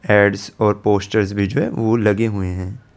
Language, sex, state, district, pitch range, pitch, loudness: Hindi, male, Chandigarh, Chandigarh, 100-110 Hz, 105 Hz, -18 LUFS